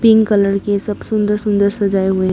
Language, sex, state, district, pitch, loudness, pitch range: Hindi, female, Arunachal Pradesh, Papum Pare, 205 Hz, -15 LUFS, 200-210 Hz